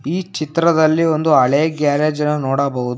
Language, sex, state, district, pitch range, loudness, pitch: Kannada, male, Karnataka, Bangalore, 140-160 Hz, -16 LUFS, 155 Hz